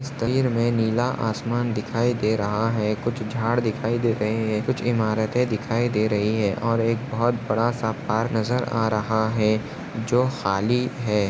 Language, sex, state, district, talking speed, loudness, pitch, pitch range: Hindi, male, Maharashtra, Nagpur, 175 wpm, -23 LUFS, 115 Hz, 110-120 Hz